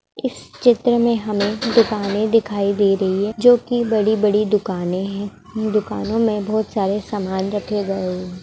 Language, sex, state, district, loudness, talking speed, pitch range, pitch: Hindi, female, Bihar, East Champaran, -19 LUFS, 155 wpm, 200-225 Hz, 210 Hz